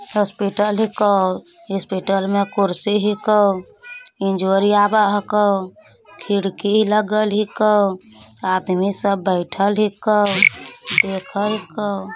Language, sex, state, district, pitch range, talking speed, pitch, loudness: Hindi, female, Bihar, Begusarai, 195-210 Hz, 90 wpm, 200 Hz, -18 LUFS